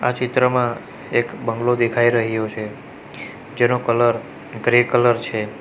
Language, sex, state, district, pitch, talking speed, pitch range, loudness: Gujarati, male, Gujarat, Valsad, 120 Hz, 130 wpm, 115-120 Hz, -19 LUFS